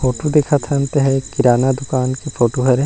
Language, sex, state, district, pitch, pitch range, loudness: Chhattisgarhi, male, Chhattisgarh, Rajnandgaon, 135 Hz, 125-140 Hz, -16 LUFS